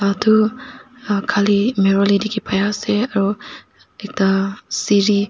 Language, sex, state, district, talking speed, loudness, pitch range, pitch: Nagamese, female, Nagaland, Dimapur, 100 wpm, -17 LUFS, 200-215 Hz, 205 Hz